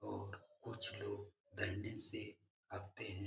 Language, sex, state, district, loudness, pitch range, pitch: Hindi, male, Bihar, Jamui, -47 LUFS, 100-105 Hz, 105 Hz